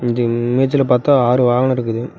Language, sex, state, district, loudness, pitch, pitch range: Tamil, male, Tamil Nadu, Namakkal, -15 LUFS, 125 Hz, 120-130 Hz